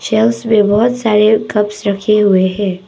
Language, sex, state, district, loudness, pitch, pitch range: Hindi, female, Arunachal Pradesh, Papum Pare, -12 LUFS, 210 Hz, 205-220 Hz